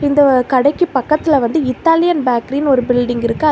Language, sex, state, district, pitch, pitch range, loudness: Tamil, female, Tamil Nadu, Kanyakumari, 280 Hz, 250-305 Hz, -14 LUFS